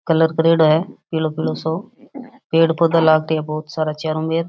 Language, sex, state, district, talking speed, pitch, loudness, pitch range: Rajasthani, female, Rajasthan, Nagaur, 185 wpm, 160 Hz, -18 LUFS, 155-165 Hz